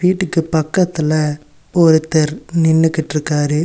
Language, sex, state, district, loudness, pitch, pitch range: Tamil, male, Tamil Nadu, Nilgiris, -16 LUFS, 160 Hz, 150-165 Hz